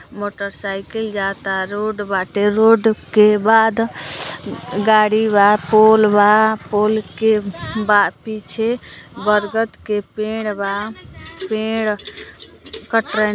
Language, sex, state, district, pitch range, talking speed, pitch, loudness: Bhojpuri, female, Uttar Pradesh, Deoria, 205-220 Hz, 95 wpm, 215 Hz, -17 LUFS